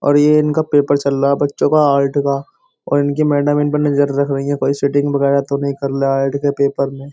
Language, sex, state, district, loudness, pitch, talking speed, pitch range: Hindi, male, Uttar Pradesh, Jyotiba Phule Nagar, -16 LUFS, 140 Hz, 250 wpm, 140-145 Hz